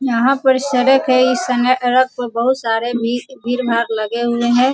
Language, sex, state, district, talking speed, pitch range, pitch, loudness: Hindi, female, Bihar, Sitamarhi, 190 wpm, 235-255 Hz, 250 Hz, -16 LUFS